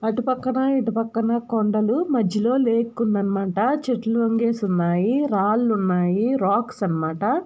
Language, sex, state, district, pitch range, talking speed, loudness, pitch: Telugu, female, Andhra Pradesh, Guntur, 200-245 Hz, 90 wpm, -21 LUFS, 225 Hz